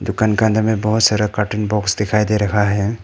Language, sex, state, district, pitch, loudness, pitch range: Hindi, male, Arunachal Pradesh, Papum Pare, 105 Hz, -17 LUFS, 105-110 Hz